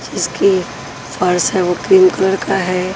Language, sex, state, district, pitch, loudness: Hindi, female, Punjab, Pathankot, 190 Hz, -14 LUFS